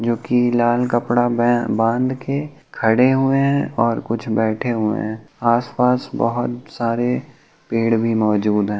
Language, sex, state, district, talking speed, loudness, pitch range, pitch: Hindi, male, Uttar Pradesh, Hamirpur, 155 wpm, -19 LUFS, 115-125 Hz, 120 Hz